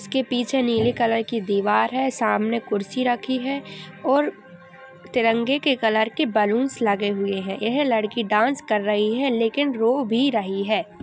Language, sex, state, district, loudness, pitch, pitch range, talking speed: Hindi, female, Uttar Pradesh, Gorakhpur, -22 LUFS, 230 Hz, 215-265 Hz, 170 wpm